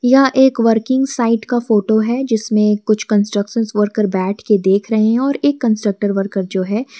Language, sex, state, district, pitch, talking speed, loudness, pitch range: Hindi, female, Jharkhand, Garhwa, 220 Hz, 190 wpm, -15 LUFS, 205-240 Hz